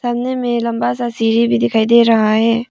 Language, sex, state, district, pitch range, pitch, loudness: Hindi, female, Arunachal Pradesh, Papum Pare, 220-240 Hz, 230 Hz, -14 LUFS